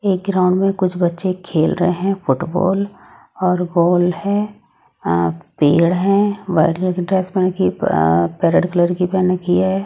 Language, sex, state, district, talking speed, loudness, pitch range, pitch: Hindi, female, Odisha, Nuapada, 170 wpm, -17 LUFS, 175-190 Hz, 180 Hz